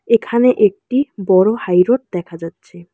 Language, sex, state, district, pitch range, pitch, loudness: Bengali, male, West Bengal, Alipurduar, 180-240 Hz, 200 Hz, -15 LUFS